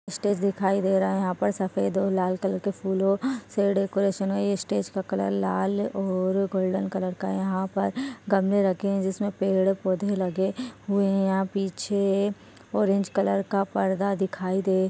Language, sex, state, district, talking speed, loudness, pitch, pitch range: Hindi, female, Maharashtra, Solapur, 190 wpm, -26 LUFS, 195 Hz, 190-200 Hz